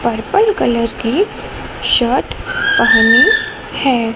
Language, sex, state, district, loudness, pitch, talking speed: Hindi, female, Gujarat, Gandhinagar, -13 LUFS, 250 Hz, 85 wpm